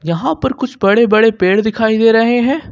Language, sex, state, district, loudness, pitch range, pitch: Hindi, male, Jharkhand, Ranchi, -13 LUFS, 215-240 Hz, 225 Hz